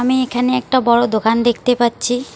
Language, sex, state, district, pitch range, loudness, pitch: Bengali, female, West Bengal, Alipurduar, 235-255 Hz, -16 LUFS, 245 Hz